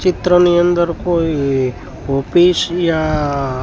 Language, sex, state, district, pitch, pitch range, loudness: Gujarati, male, Gujarat, Gandhinagar, 165 Hz, 135-175 Hz, -15 LUFS